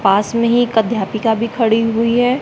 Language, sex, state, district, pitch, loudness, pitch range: Hindi, female, Haryana, Charkhi Dadri, 230 Hz, -15 LUFS, 220-235 Hz